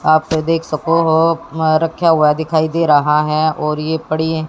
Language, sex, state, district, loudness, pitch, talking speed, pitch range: Hindi, female, Haryana, Jhajjar, -15 LUFS, 160 Hz, 175 wpm, 155-165 Hz